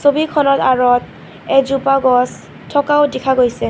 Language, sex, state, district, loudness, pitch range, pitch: Assamese, female, Assam, Kamrup Metropolitan, -14 LUFS, 250-285 Hz, 275 Hz